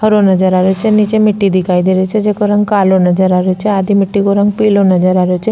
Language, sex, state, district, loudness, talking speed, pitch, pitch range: Rajasthani, female, Rajasthan, Nagaur, -11 LUFS, 295 wpm, 195 Hz, 185-210 Hz